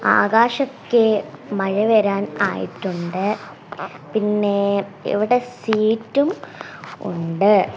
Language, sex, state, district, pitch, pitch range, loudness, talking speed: Malayalam, female, Kerala, Kasaragod, 210 Hz, 195-225 Hz, -20 LUFS, 60 wpm